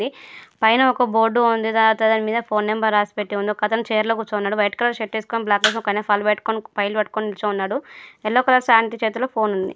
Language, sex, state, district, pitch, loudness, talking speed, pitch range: Telugu, female, Andhra Pradesh, Guntur, 220 Hz, -20 LUFS, 195 wpm, 210-225 Hz